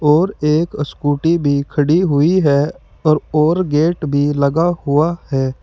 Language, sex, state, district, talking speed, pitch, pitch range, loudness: Hindi, male, Uttar Pradesh, Saharanpur, 150 wpm, 150 Hz, 145-165 Hz, -16 LUFS